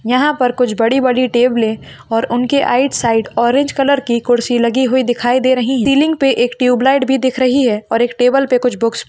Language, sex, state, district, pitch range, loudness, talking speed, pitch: Hindi, female, Maharashtra, Dhule, 240-265 Hz, -14 LUFS, 225 wpm, 250 Hz